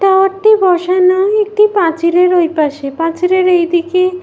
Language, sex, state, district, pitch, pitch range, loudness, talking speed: Bengali, female, West Bengal, Paschim Medinipur, 365 Hz, 340-385 Hz, -12 LUFS, 130 wpm